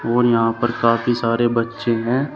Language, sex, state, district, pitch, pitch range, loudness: Hindi, male, Uttar Pradesh, Shamli, 115 Hz, 115-120 Hz, -18 LUFS